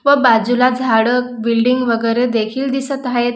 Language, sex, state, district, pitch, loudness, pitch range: Marathi, female, Maharashtra, Dhule, 245 Hz, -15 LUFS, 230-255 Hz